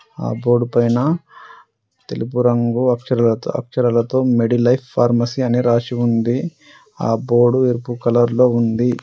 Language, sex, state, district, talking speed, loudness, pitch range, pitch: Telugu, male, Telangana, Adilabad, 120 wpm, -17 LUFS, 120-125 Hz, 120 Hz